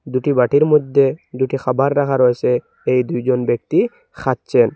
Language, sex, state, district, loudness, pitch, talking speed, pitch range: Bengali, male, Assam, Hailakandi, -17 LUFS, 130 Hz, 140 wpm, 125-140 Hz